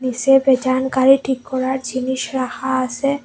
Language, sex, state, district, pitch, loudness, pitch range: Bengali, female, Assam, Hailakandi, 260 Hz, -18 LUFS, 255-270 Hz